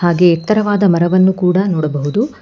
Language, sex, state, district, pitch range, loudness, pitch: Kannada, female, Karnataka, Bangalore, 170-200 Hz, -13 LUFS, 180 Hz